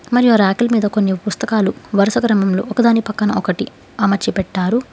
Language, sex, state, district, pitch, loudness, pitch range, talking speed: Telugu, female, Telangana, Hyderabad, 210 Hz, -16 LUFS, 195-235 Hz, 160 wpm